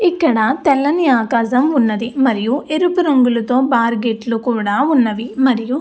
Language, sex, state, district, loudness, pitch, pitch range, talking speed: Telugu, female, Andhra Pradesh, Anantapur, -15 LUFS, 255 Hz, 230-280 Hz, 145 wpm